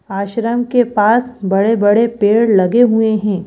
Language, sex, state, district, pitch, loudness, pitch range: Hindi, female, Madhya Pradesh, Bhopal, 220 Hz, -13 LUFS, 205-235 Hz